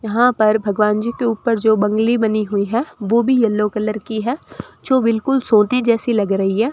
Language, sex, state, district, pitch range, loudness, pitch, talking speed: Hindi, female, Rajasthan, Bikaner, 215-235 Hz, -17 LUFS, 220 Hz, 215 wpm